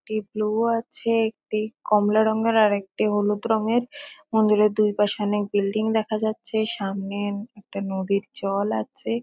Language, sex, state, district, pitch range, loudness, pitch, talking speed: Bengali, female, West Bengal, Kolkata, 205-220 Hz, -23 LUFS, 215 Hz, 135 wpm